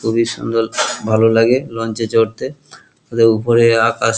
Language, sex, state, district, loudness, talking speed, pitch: Bengali, male, West Bengal, Kolkata, -15 LUFS, 130 wpm, 115 Hz